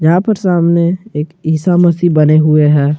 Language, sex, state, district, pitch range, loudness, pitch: Hindi, male, Jharkhand, Garhwa, 155-175 Hz, -11 LUFS, 170 Hz